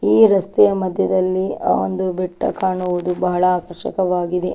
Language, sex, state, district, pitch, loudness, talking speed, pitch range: Kannada, female, Karnataka, Dakshina Kannada, 180 Hz, -18 LUFS, 130 wpm, 175-185 Hz